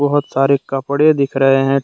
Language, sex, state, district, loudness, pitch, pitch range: Hindi, male, Jharkhand, Deoghar, -15 LUFS, 135 Hz, 135-145 Hz